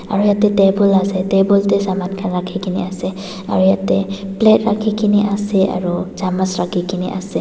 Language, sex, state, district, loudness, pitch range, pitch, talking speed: Nagamese, female, Nagaland, Dimapur, -16 LUFS, 185-200 Hz, 195 Hz, 180 wpm